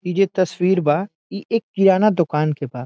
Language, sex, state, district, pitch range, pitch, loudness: Bhojpuri, male, Bihar, Saran, 155-195 Hz, 185 Hz, -19 LUFS